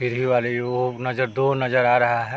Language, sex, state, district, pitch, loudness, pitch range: Hindi, male, Bihar, Vaishali, 125 Hz, -21 LUFS, 120-130 Hz